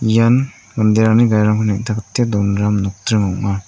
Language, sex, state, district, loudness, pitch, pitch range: Garo, male, Meghalaya, North Garo Hills, -16 LUFS, 110 Hz, 100-115 Hz